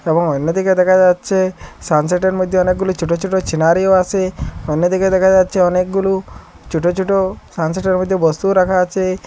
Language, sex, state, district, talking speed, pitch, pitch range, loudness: Bengali, male, Assam, Hailakandi, 150 wpm, 185 Hz, 175-190 Hz, -15 LUFS